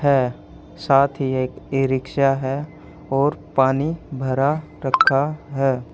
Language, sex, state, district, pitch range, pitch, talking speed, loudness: Hindi, male, Haryana, Charkhi Dadri, 130-145 Hz, 135 Hz, 120 wpm, -20 LUFS